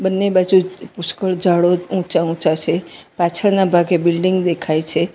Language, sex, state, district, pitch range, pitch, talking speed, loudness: Gujarati, female, Gujarat, Valsad, 170-185 Hz, 175 Hz, 130 wpm, -17 LUFS